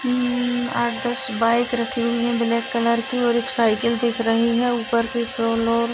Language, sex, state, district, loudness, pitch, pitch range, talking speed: Hindi, female, Chhattisgarh, Sarguja, -21 LUFS, 235 Hz, 235-245 Hz, 200 wpm